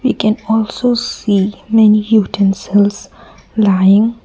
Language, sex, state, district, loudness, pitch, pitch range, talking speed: English, female, Assam, Kamrup Metropolitan, -13 LUFS, 215 Hz, 200-225 Hz, 85 wpm